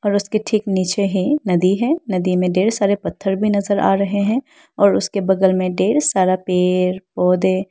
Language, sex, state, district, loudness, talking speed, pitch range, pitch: Hindi, female, Arunachal Pradesh, Lower Dibang Valley, -17 LUFS, 195 wpm, 185-205 Hz, 195 Hz